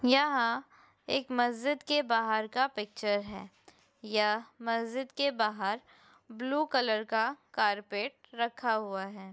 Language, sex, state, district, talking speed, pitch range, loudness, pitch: Hindi, female, Uttar Pradesh, Hamirpur, 120 wpm, 215-265 Hz, -31 LUFS, 230 Hz